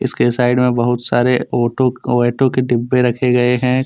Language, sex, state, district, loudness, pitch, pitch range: Hindi, male, Jharkhand, Deoghar, -15 LUFS, 125 Hz, 120-125 Hz